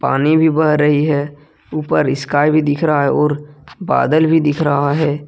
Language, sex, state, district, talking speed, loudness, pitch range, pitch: Hindi, male, Jharkhand, Ranchi, 195 wpm, -15 LUFS, 145-155 Hz, 150 Hz